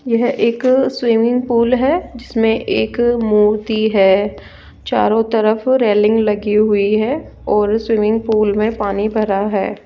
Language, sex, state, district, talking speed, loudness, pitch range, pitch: Hindi, female, Rajasthan, Jaipur, 135 wpm, -15 LUFS, 210-235 Hz, 220 Hz